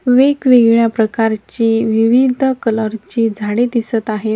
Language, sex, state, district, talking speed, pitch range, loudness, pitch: Marathi, female, Maharashtra, Washim, 95 wpm, 220-245 Hz, -14 LUFS, 225 Hz